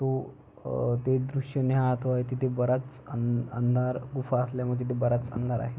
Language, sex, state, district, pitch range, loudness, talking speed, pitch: Marathi, male, Maharashtra, Pune, 125-130 Hz, -29 LUFS, 155 wpm, 125 Hz